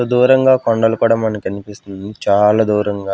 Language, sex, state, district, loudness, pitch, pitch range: Telugu, male, Andhra Pradesh, Sri Satya Sai, -14 LUFS, 105 Hz, 100-115 Hz